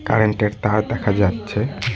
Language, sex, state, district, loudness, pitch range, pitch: Bengali, male, West Bengal, Cooch Behar, -20 LUFS, 105-110 Hz, 105 Hz